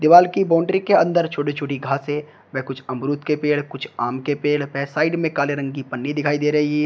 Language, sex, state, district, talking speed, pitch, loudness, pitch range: Hindi, male, Uttar Pradesh, Shamli, 245 wpm, 145 Hz, -21 LUFS, 140-155 Hz